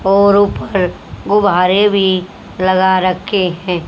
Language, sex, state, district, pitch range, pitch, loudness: Hindi, female, Haryana, Jhajjar, 185-200 Hz, 190 Hz, -13 LUFS